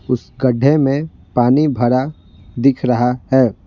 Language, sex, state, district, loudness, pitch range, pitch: Hindi, male, Bihar, Patna, -16 LUFS, 120-135 Hz, 125 Hz